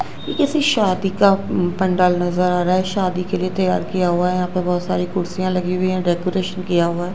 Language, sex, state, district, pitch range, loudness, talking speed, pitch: Hindi, female, Gujarat, Gandhinagar, 180-185 Hz, -19 LUFS, 225 wpm, 185 Hz